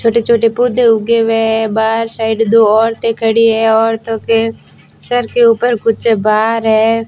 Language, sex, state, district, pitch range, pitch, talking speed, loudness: Hindi, female, Rajasthan, Bikaner, 225-230 Hz, 225 Hz, 170 wpm, -12 LUFS